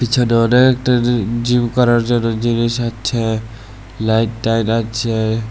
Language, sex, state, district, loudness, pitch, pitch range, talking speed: Bengali, male, Tripura, West Tripura, -16 LUFS, 115 Hz, 110-120 Hz, 110 wpm